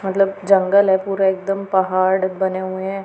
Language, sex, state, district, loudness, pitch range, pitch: Hindi, female, Punjab, Pathankot, -18 LUFS, 190-195 Hz, 190 Hz